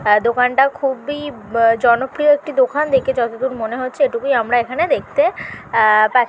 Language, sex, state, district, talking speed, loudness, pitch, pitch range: Bengali, female, West Bengal, North 24 Parganas, 160 wpm, -17 LUFS, 255 Hz, 235-275 Hz